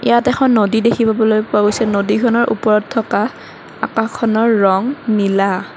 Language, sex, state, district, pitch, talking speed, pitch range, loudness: Assamese, female, Assam, Kamrup Metropolitan, 220 Hz, 125 wpm, 210-230 Hz, -15 LUFS